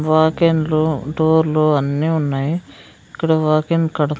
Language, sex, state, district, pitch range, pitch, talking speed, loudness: Telugu, female, Andhra Pradesh, Sri Satya Sai, 150-160 Hz, 155 Hz, 100 wpm, -17 LUFS